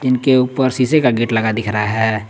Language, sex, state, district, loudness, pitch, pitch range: Hindi, male, Jharkhand, Garhwa, -16 LUFS, 120 Hz, 110-130 Hz